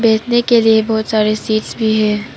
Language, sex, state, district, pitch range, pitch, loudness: Hindi, female, Arunachal Pradesh, Papum Pare, 215-225 Hz, 220 Hz, -14 LUFS